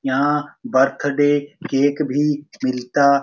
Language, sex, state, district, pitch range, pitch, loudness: Hindi, male, Bihar, Supaul, 135-145 Hz, 145 Hz, -19 LUFS